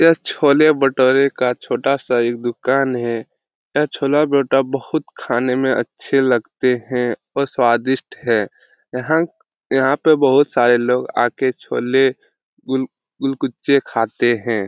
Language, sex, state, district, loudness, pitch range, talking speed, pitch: Hindi, male, Jharkhand, Jamtara, -17 LUFS, 120-140 Hz, 130 wpm, 130 Hz